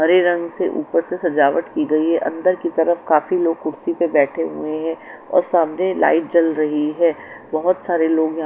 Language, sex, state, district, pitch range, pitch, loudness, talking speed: Hindi, female, Chandigarh, Chandigarh, 155-175 Hz, 165 Hz, -19 LUFS, 200 wpm